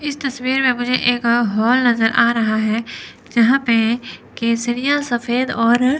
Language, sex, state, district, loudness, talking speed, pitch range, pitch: Hindi, female, Chandigarh, Chandigarh, -17 LUFS, 150 wpm, 230-255 Hz, 240 Hz